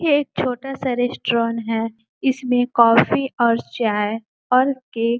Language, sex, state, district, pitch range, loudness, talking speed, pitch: Hindi, female, Uttar Pradesh, Gorakhpur, 230-260 Hz, -20 LUFS, 150 wpm, 240 Hz